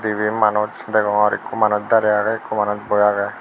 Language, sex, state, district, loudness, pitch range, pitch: Chakma, male, Tripura, Unakoti, -18 LUFS, 105-110 Hz, 105 Hz